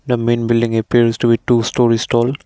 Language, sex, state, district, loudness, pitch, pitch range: English, male, Assam, Kamrup Metropolitan, -15 LUFS, 120 Hz, 115-120 Hz